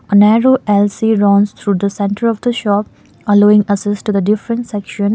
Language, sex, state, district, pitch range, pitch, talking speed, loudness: English, female, Sikkim, Gangtok, 200-220 Hz, 205 Hz, 185 wpm, -13 LUFS